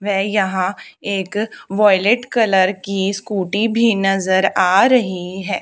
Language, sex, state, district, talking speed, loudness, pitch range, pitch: Hindi, female, Haryana, Charkhi Dadri, 130 wpm, -17 LUFS, 190-215 Hz, 200 Hz